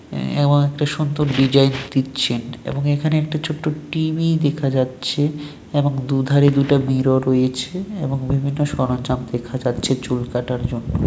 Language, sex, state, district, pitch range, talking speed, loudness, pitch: Bengali, male, West Bengal, Malda, 130-145 Hz, 150 wpm, -20 LUFS, 135 Hz